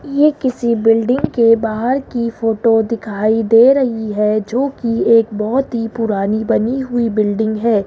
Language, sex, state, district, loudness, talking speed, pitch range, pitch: Hindi, female, Rajasthan, Jaipur, -15 LUFS, 150 wpm, 220-250 Hz, 230 Hz